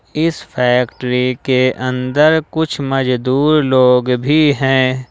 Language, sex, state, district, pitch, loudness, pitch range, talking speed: Hindi, male, Jharkhand, Ranchi, 130 Hz, -14 LUFS, 125-145 Hz, 105 wpm